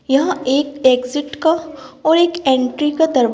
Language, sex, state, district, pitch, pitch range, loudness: Hindi, female, Madhya Pradesh, Bhopal, 285 Hz, 260-320 Hz, -16 LUFS